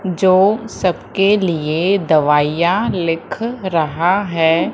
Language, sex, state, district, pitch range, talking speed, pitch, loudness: Hindi, female, Madhya Pradesh, Umaria, 165-195 Hz, 90 wpm, 175 Hz, -16 LUFS